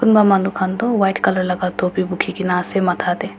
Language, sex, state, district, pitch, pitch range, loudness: Nagamese, female, Nagaland, Dimapur, 185 Hz, 180-195 Hz, -18 LUFS